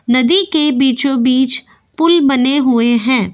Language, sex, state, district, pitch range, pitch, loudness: Hindi, female, Uttar Pradesh, Jyotiba Phule Nagar, 250-285 Hz, 260 Hz, -12 LUFS